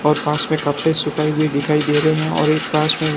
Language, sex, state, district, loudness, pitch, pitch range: Hindi, male, Rajasthan, Barmer, -17 LUFS, 150 Hz, 150-155 Hz